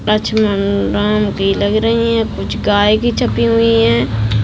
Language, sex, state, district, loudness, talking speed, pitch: Hindi, female, Bihar, Darbhanga, -14 LUFS, 160 wpm, 205 Hz